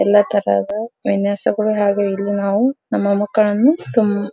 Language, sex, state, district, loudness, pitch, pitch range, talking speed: Kannada, female, Karnataka, Dharwad, -17 LUFS, 205 Hz, 200-215 Hz, 140 wpm